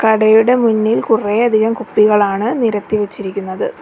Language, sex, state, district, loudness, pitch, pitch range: Malayalam, female, Kerala, Kollam, -14 LUFS, 220 Hz, 210-225 Hz